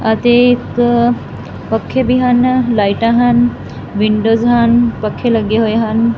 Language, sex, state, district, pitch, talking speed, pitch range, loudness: Punjabi, female, Punjab, Fazilka, 235 Hz, 125 wpm, 220-240 Hz, -13 LUFS